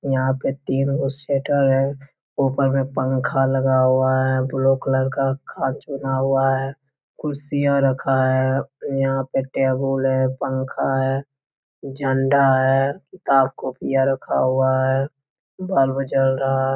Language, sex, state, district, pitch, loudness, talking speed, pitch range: Hindi, male, Bihar, Jamui, 135 Hz, -20 LUFS, 135 wpm, 130-135 Hz